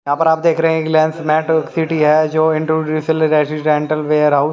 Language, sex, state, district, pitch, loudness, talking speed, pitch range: Hindi, male, Haryana, Jhajjar, 155 Hz, -15 LUFS, 185 wpm, 150-160 Hz